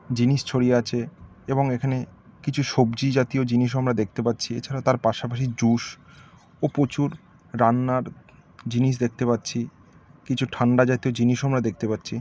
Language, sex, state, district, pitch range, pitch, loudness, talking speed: Bengali, male, West Bengal, North 24 Parganas, 120-130 Hz, 125 Hz, -24 LUFS, 140 wpm